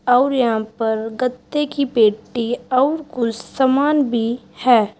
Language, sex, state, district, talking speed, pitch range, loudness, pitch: Hindi, female, Uttar Pradesh, Saharanpur, 130 wpm, 225-265 Hz, -19 LUFS, 245 Hz